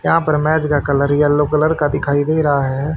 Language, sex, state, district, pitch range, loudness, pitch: Hindi, male, Haryana, Rohtak, 145-155 Hz, -16 LUFS, 145 Hz